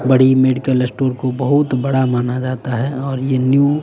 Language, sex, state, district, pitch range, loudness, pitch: Hindi, male, Bihar, West Champaran, 130-135 Hz, -16 LUFS, 130 Hz